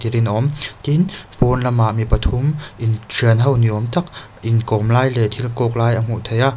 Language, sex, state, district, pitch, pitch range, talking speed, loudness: Mizo, male, Mizoram, Aizawl, 115 Hz, 110-130 Hz, 210 wpm, -18 LUFS